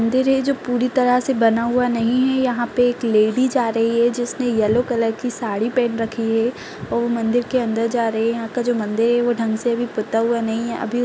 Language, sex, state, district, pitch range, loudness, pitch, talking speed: Kumaoni, female, Uttarakhand, Tehri Garhwal, 225-245 Hz, -19 LUFS, 235 Hz, 260 wpm